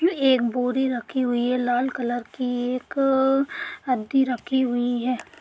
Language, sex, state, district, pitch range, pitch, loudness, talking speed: Hindi, female, Uttar Pradesh, Deoria, 245-265 Hz, 250 Hz, -23 LUFS, 145 wpm